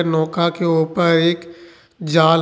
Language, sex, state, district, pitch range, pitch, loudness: Hindi, male, Jharkhand, Ranchi, 160-170 Hz, 170 Hz, -17 LUFS